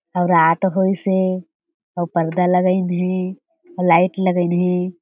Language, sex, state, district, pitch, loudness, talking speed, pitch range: Chhattisgarhi, female, Chhattisgarh, Jashpur, 180 Hz, -18 LUFS, 130 wpm, 180-190 Hz